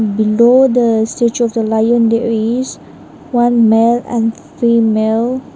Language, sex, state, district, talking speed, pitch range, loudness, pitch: English, female, Nagaland, Dimapur, 130 wpm, 225-240 Hz, -13 LUFS, 230 Hz